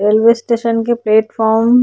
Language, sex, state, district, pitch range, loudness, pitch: Hindi, female, Maharashtra, Chandrapur, 220-235 Hz, -13 LUFS, 230 Hz